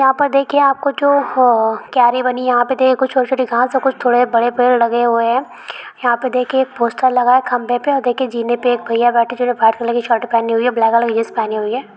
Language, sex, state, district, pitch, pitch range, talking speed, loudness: Hindi, female, Rajasthan, Nagaur, 245 Hz, 235-260 Hz, 265 wpm, -15 LUFS